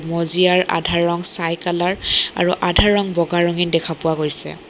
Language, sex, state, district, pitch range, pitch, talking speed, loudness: Assamese, female, Assam, Kamrup Metropolitan, 165-180 Hz, 170 Hz, 165 wpm, -15 LUFS